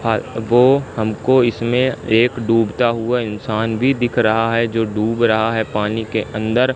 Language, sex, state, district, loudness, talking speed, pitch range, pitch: Hindi, male, Madhya Pradesh, Katni, -17 LUFS, 160 wpm, 110-120 Hz, 115 Hz